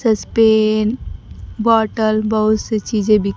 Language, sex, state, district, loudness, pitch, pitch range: Hindi, female, Bihar, Kaimur, -16 LUFS, 215 Hz, 215-220 Hz